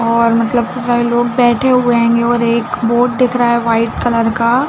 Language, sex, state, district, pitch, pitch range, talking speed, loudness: Hindi, female, Chhattisgarh, Bilaspur, 240 Hz, 235-245 Hz, 215 wpm, -13 LUFS